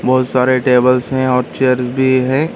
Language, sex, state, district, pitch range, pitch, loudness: Hindi, male, Karnataka, Bangalore, 125-130 Hz, 130 Hz, -14 LUFS